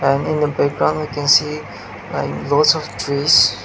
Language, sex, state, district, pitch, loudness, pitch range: English, male, Nagaland, Dimapur, 140 Hz, -17 LUFS, 130-150 Hz